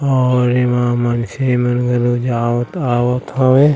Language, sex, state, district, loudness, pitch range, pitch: Chhattisgarhi, male, Chhattisgarh, Raigarh, -16 LUFS, 120-130 Hz, 125 Hz